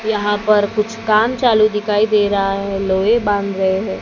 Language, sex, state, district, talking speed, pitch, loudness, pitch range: Hindi, female, Maharashtra, Gondia, 195 wpm, 210 Hz, -16 LUFS, 195-215 Hz